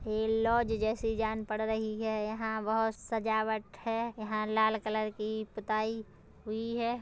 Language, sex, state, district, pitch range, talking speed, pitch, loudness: Hindi, female, Chhattisgarh, Kabirdham, 215-225 Hz, 155 wpm, 220 Hz, -33 LUFS